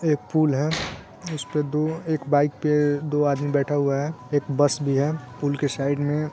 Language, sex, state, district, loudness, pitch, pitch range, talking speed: Hindi, male, Bihar, Saran, -24 LUFS, 145 Hz, 140-150 Hz, 210 wpm